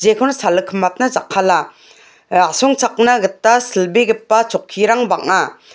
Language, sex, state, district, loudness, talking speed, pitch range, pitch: Garo, female, Meghalaya, West Garo Hills, -15 LUFS, 95 wpm, 190-240 Hz, 220 Hz